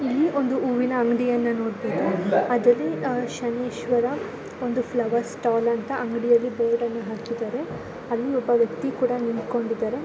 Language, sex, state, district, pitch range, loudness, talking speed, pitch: Kannada, female, Karnataka, Belgaum, 235-250 Hz, -24 LUFS, 115 wpm, 240 Hz